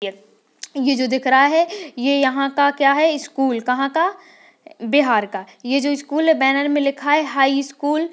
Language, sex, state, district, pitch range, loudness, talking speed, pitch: Hindi, female, Bihar, Jamui, 265-305 Hz, -18 LUFS, 200 wpm, 280 Hz